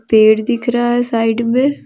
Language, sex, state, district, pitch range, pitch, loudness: Hindi, female, Jharkhand, Deoghar, 225-245 Hz, 240 Hz, -14 LUFS